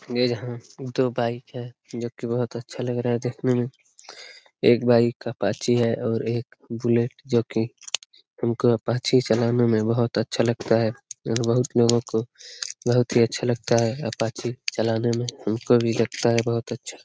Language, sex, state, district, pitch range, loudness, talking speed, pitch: Hindi, male, Bihar, Lakhisarai, 115-120 Hz, -24 LUFS, 170 wpm, 120 Hz